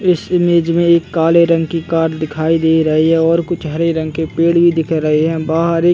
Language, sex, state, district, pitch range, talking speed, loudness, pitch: Hindi, male, Chhattisgarh, Bastar, 160-170 Hz, 250 wpm, -14 LUFS, 165 Hz